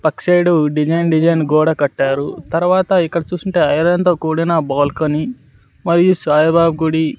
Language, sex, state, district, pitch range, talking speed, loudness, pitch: Telugu, male, Andhra Pradesh, Sri Satya Sai, 155-175 Hz, 135 wpm, -15 LUFS, 165 Hz